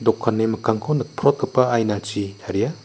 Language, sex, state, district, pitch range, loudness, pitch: Garo, male, Meghalaya, West Garo Hills, 110-140 Hz, -21 LUFS, 115 Hz